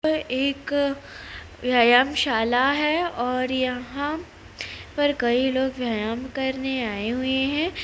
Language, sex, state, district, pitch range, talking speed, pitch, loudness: Hindi, female, Bihar, Jamui, 250-285 Hz, 105 wpm, 260 Hz, -23 LUFS